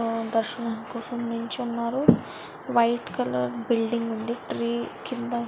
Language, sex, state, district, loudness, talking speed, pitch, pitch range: Telugu, female, Andhra Pradesh, Visakhapatnam, -27 LUFS, 120 wpm, 235 Hz, 230-235 Hz